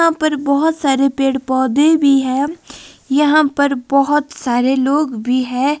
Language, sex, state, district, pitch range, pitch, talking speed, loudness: Hindi, female, Himachal Pradesh, Shimla, 265-295 Hz, 280 Hz, 155 wpm, -15 LUFS